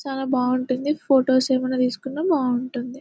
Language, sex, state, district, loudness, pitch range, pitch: Telugu, female, Telangana, Nalgonda, -22 LUFS, 255-270 Hz, 260 Hz